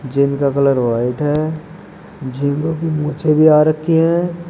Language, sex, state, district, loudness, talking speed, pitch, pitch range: Hindi, male, Uttar Pradesh, Shamli, -16 LUFS, 145 wpm, 155 Hz, 140-165 Hz